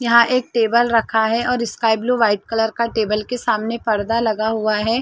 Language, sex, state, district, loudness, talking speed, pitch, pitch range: Hindi, female, Chhattisgarh, Rajnandgaon, -18 LUFS, 215 wpm, 225 Hz, 220-235 Hz